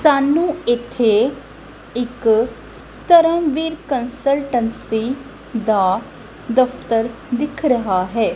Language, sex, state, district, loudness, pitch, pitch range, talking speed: Punjabi, female, Punjab, Kapurthala, -18 LUFS, 245 Hz, 230-280 Hz, 70 wpm